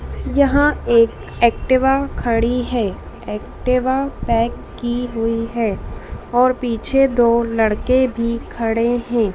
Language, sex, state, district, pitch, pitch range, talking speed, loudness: Hindi, female, Madhya Pradesh, Dhar, 235 Hz, 230-255 Hz, 110 wpm, -18 LUFS